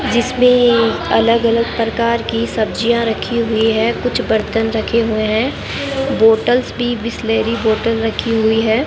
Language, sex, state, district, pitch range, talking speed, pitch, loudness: Hindi, female, Rajasthan, Bikaner, 225-240 Hz, 140 wpm, 230 Hz, -15 LUFS